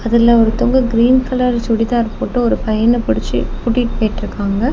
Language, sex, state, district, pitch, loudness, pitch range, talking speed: Tamil, female, Tamil Nadu, Kanyakumari, 235 Hz, -15 LUFS, 225-245 Hz, 140 wpm